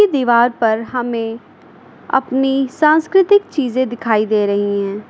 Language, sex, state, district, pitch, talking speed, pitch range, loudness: Hindi, female, Uttar Pradesh, Lucknow, 245 Hz, 120 wpm, 220-270 Hz, -16 LUFS